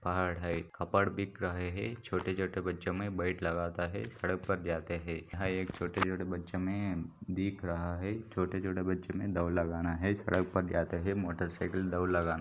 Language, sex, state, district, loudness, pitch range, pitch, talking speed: Hindi, male, Maharashtra, Sindhudurg, -35 LUFS, 85-95 Hz, 90 Hz, 205 wpm